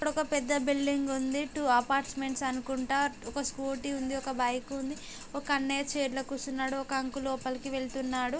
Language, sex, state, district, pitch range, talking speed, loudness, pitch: Telugu, female, Telangana, Nalgonda, 265-280 Hz, 165 wpm, -32 LUFS, 270 Hz